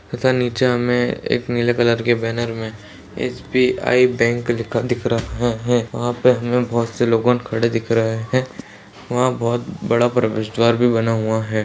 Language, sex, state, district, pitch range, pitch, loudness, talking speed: Hindi, male, Bihar, Darbhanga, 115-120 Hz, 120 Hz, -19 LUFS, 175 wpm